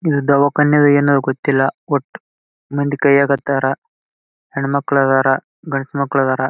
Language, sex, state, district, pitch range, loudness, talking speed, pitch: Kannada, male, Karnataka, Bijapur, 135-145 Hz, -16 LUFS, 120 wpm, 140 Hz